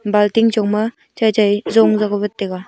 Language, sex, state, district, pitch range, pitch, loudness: Wancho, female, Arunachal Pradesh, Longding, 205-220 Hz, 210 Hz, -16 LUFS